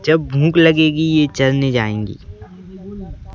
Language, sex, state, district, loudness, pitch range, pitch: Hindi, male, Madhya Pradesh, Bhopal, -15 LUFS, 120-160 Hz, 150 Hz